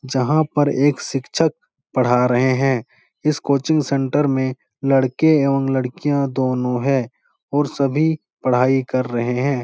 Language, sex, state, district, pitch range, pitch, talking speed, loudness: Hindi, male, Bihar, Supaul, 130-145 Hz, 135 Hz, 135 wpm, -19 LUFS